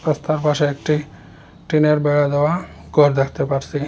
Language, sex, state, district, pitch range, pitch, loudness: Bengali, male, Assam, Hailakandi, 145-155 Hz, 150 Hz, -18 LUFS